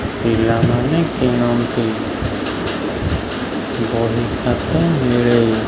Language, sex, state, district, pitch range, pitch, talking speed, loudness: Odia, male, Odisha, Khordha, 115-130 Hz, 120 Hz, 55 wpm, -18 LUFS